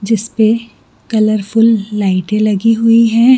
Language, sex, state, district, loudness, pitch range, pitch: Hindi, female, Jharkhand, Jamtara, -12 LUFS, 210-230 Hz, 220 Hz